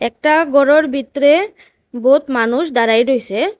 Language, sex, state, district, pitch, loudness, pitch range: Bengali, female, Assam, Hailakandi, 280 Hz, -14 LUFS, 240-310 Hz